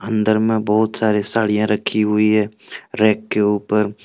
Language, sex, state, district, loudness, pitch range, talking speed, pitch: Hindi, male, Jharkhand, Deoghar, -18 LUFS, 105-110 Hz, 165 wpm, 105 Hz